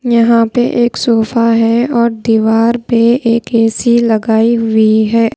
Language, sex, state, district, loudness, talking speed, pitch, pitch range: Hindi, female, Bihar, Patna, -11 LUFS, 145 wpm, 230 Hz, 225-235 Hz